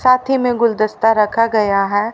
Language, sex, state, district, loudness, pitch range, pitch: Hindi, female, Haryana, Rohtak, -15 LUFS, 210-245 Hz, 225 Hz